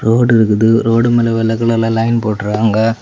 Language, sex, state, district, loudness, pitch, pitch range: Tamil, male, Tamil Nadu, Kanyakumari, -13 LUFS, 115 Hz, 110-115 Hz